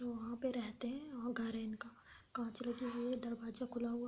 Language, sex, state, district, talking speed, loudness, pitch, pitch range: Hindi, female, Uttar Pradesh, Gorakhpur, 235 wpm, -43 LUFS, 240 Hz, 230-245 Hz